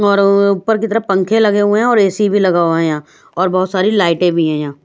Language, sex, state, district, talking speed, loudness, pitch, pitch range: Hindi, female, Haryana, Rohtak, 285 wpm, -13 LUFS, 195 Hz, 170-210 Hz